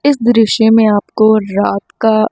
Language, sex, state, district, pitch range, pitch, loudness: Hindi, female, Chandigarh, Chandigarh, 215-225 Hz, 220 Hz, -11 LUFS